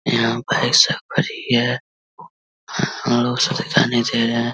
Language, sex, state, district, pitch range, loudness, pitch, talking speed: Hindi, male, Bihar, Vaishali, 120-125 Hz, -18 LUFS, 120 Hz, 90 wpm